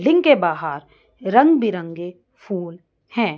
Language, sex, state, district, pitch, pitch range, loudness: Hindi, female, Chandigarh, Chandigarh, 185 Hz, 170-255 Hz, -18 LUFS